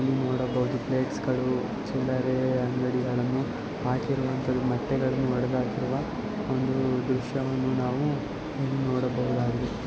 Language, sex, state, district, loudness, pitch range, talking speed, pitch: Kannada, female, Karnataka, Raichur, -28 LUFS, 125-130 Hz, 85 wpm, 130 Hz